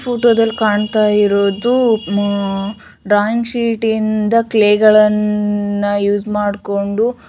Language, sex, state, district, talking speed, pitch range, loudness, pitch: Kannada, female, Karnataka, Shimoga, 90 wpm, 205-225 Hz, -14 LUFS, 210 Hz